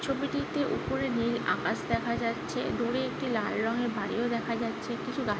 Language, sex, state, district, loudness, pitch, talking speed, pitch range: Bengali, female, West Bengal, Jhargram, -31 LUFS, 235 Hz, 180 wpm, 230-245 Hz